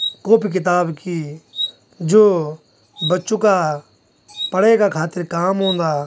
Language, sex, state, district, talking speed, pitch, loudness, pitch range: Garhwali, male, Uttarakhand, Tehri Garhwal, 110 wpm, 175 Hz, -17 LUFS, 150-195 Hz